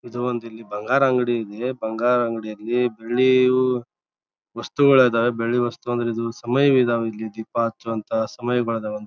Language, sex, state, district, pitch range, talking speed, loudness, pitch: Kannada, male, Karnataka, Bijapur, 115-125 Hz, 140 wpm, -21 LUFS, 120 Hz